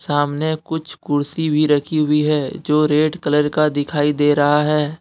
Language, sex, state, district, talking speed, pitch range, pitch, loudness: Hindi, male, Jharkhand, Deoghar, 180 wpm, 145-155 Hz, 150 Hz, -18 LUFS